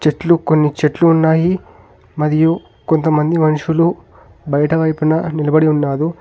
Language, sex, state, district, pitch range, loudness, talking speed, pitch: Telugu, male, Telangana, Hyderabad, 150-165 Hz, -15 LUFS, 105 wpm, 155 Hz